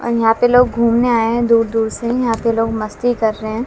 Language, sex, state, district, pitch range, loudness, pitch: Hindi, female, Bihar, West Champaran, 225-240 Hz, -15 LUFS, 230 Hz